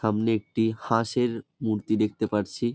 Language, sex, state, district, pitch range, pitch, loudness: Bengali, male, West Bengal, Jalpaiguri, 110-115 Hz, 110 Hz, -26 LUFS